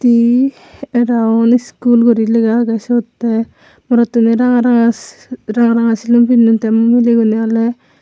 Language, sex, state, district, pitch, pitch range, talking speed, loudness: Chakma, female, Tripura, Unakoti, 235 Hz, 230-240 Hz, 140 wpm, -12 LUFS